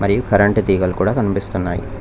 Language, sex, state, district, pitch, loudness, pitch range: Telugu, male, Telangana, Mahabubabad, 100 Hz, -17 LUFS, 95-105 Hz